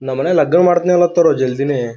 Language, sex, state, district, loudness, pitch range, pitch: Kannada, male, Karnataka, Gulbarga, -14 LUFS, 130-175 Hz, 155 Hz